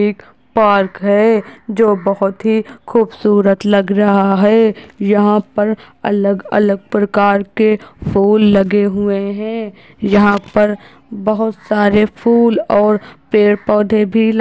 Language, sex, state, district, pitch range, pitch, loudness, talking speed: Hindi, female, Uttar Pradesh, Budaun, 200-220 Hz, 210 Hz, -14 LUFS, 125 wpm